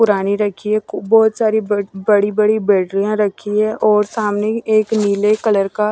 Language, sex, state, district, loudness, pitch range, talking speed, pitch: Hindi, female, Maharashtra, Washim, -16 LUFS, 205-215 Hz, 180 wpm, 210 Hz